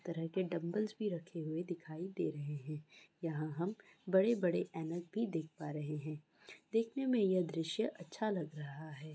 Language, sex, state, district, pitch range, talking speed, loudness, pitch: Hindi, female, West Bengal, Malda, 155-195 Hz, 185 wpm, -39 LUFS, 170 Hz